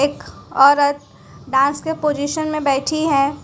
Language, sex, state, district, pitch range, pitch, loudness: Hindi, female, Gujarat, Valsad, 280-305 Hz, 285 Hz, -17 LUFS